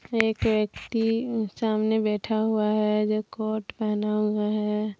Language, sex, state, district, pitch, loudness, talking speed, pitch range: Hindi, female, Bihar, Darbhanga, 215 Hz, -26 LUFS, 130 wpm, 210-220 Hz